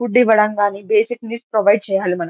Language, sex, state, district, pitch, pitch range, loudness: Telugu, female, Andhra Pradesh, Anantapur, 215 Hz, 200-230 Hz, -17 LUFS